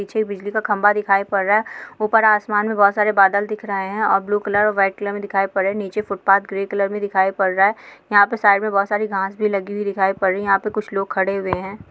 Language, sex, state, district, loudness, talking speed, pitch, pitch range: Hindi, female, Goa, North and South Goa, -19 LUFS, 285 wpm, 200 Hz, 195-210 Hz